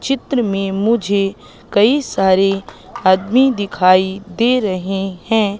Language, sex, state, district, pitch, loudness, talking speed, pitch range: Hindi, female, Madhya Pradesh, Katni, 200 Hz, -16 LUFS, 105 wpm, 195-230 Hz